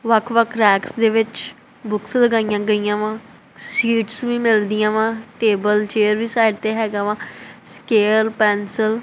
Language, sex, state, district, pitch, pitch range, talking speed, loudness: Punjabi, female, Punjab, Kapurthala, 220 Hz, 210-225 Hz, 155 wpm, -18 LUFS